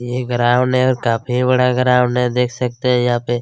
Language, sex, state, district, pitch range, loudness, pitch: Hindi, male, Chhattisgarh, Kabirdham, 120-125 Hz, -16 LUFS, 125 Hz